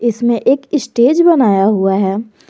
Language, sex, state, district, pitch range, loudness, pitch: Hindi, female, Jharkhand, Garhwa, 205-270 Hz, -13 LUFS, 235 Hz